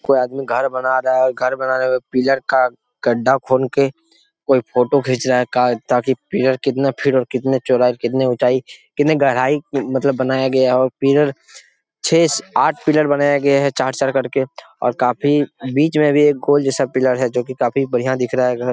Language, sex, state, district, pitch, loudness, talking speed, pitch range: Hindi, male, Jharkhand, Jamtara, 130 Hz, -17 LUFS, 205 wpm, 125-140 Hz